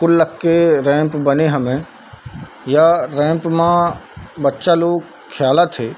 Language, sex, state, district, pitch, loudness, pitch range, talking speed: Chhattisgarhi, male, Chhattisgarh, Bilaspur, 155 Hz, -15 LUFS, 140-170 Hz, 120 wpm